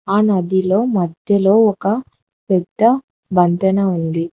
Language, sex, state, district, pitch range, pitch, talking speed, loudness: Telugu, female, Telangana, Hyderabad, 180-210 Hz, 195 Hz, 95 wpm, -16 LUFS